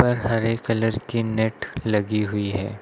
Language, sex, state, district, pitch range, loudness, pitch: Hindi, male, Uttar Pradesh, Lucknow, 105-115 Hz, -24 LUFS, 110 Hz